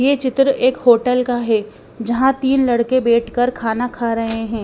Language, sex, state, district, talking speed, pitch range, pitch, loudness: Hindi, female, Bihar, Patna, 180 wpm, 230-255 Hz, 245 Hz, -17 LUFS